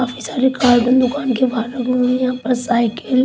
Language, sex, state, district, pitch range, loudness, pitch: Hindi, female, Haryana, Rohtak, 245-255 Hz, -17 LUFS, 250 Hz